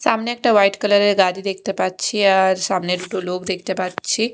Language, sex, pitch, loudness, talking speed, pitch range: Bengali, female, 195 Hz, -18 LUFS, 195 wpm, 185-210 Hz